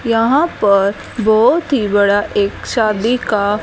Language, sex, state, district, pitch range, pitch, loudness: Hindi, female, Haryana, Charkhi Dadri, 205-240 Hz, 215 Hz, -14 LUFS